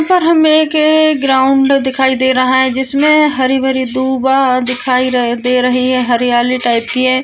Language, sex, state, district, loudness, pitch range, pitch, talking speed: Hindi, female, Maharashtra, Chandrapur, -12 LUFS, 255-275 Hz, 260 Hz, 175 wpm